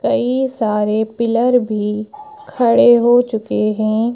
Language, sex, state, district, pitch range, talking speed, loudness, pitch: Hindi, female, Madhya Pradesh, Bhopal, 215-250 Hz, 115 wpm, -15 LUFS, 235 Hz